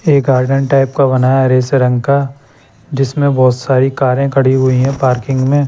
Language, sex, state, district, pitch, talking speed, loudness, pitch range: Hindi, male, Chandigarh, Chandigarh, 135 Hz, 190 wpm, -12 LUFS, 130-140 Hz